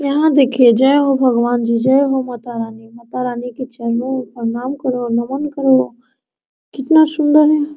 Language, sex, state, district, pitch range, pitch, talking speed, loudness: Hindi, female, Bihar, Araria, 240-275 Hz, 255 Hz, 170 wpm, -15 LUFS